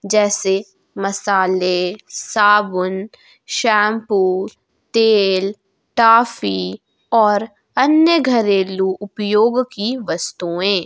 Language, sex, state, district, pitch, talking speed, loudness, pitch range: Hindi, female, Jharkhand, Ranchi, 205 Hz, 65 wpm, -17 LUFS, 190-220 Hz